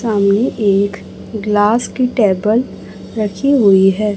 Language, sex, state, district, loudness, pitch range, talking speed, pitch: Hindi, male, Chhattisgarh, Raipur, -14 LUFS, 200-225 Hz, 115 wpm, 210 Hz